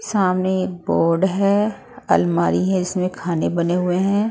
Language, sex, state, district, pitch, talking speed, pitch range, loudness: Hindi, female, Maharashtra, Gondia, 185 Hz, 155 wpm, 170-195 Hz, -19 LUFS